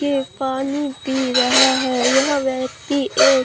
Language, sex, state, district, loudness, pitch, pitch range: Hindi, female, Bihar, Katihar, -18 LUFS, 265 Hz, 260-280 Hz